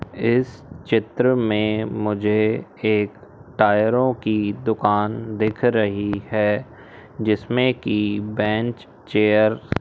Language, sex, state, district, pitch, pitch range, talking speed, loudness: Hindi, male, Madhya Pradesh, Umaria, 110 Hz, 105-115 Hz, 100 wpm, -21 LUFS